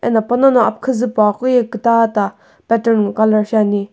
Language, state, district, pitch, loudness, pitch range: Sumi, Nagaland, Kohima, 230 Hz, -15 LUFS, 215-245 Hz